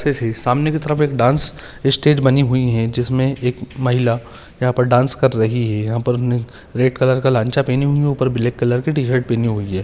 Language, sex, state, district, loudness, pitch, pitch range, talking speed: Hindi, male, Maharashtra, Pune, -17 LUFS, 125 Hz, 120-135 Hz, 225 wpm